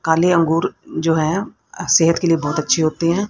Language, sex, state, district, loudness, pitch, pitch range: Hindi, female, Haryana, Rohtak, -17 LUFS, 165 Hz, 160-170 Hz